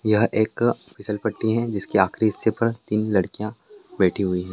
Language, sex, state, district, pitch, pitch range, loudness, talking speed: Hindi, male, Chhattisgarh, Jashpur, 110 Hz, 100-115 Hz, -23 LUFS, 170 wpm